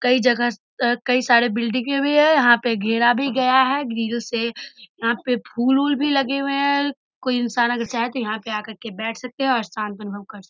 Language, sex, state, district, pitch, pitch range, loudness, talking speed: Hindi, female, Bihar, Darbhanga, 240 Hz, 230-265 Hz, -20 LUFS, 215 wpm